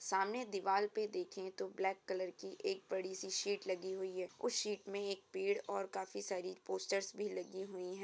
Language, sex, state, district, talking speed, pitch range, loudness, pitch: Hindi, female, Uttar Pradesh, Jyotiba Phule Nagar, 210 wpm, 185-205 Hz, -41 LUFS, 190 Hz